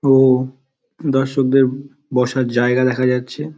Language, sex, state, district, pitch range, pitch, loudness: Bengali, male, West Bengal, Dakshin Dinajpur, 125-135 Hz, 130 Hz, -17 LUFS